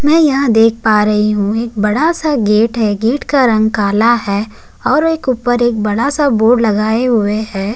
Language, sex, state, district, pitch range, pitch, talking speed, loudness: Hindi, male, Uttarakhand, Tehri Garhwal, 210-255 Hz, 225 Hz, 195 wpm, -13 LUFS